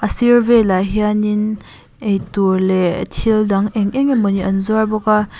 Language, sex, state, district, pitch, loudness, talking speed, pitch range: Mizo, female, Mizoram, Aizawl, 210 Hz, -16 LUFS, 165 wpm, 195-220 Hz